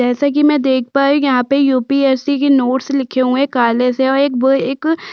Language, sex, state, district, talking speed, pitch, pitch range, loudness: Hindi, female, Chhattisgarh, Sukma, 235 wpm, 270 Hz, 255-280 Hz, -14 LUFS